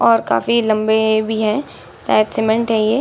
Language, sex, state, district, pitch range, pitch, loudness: Hindi, female, Bihar, Saran, 215-230 Hz, 220 Hz, -16 LUFS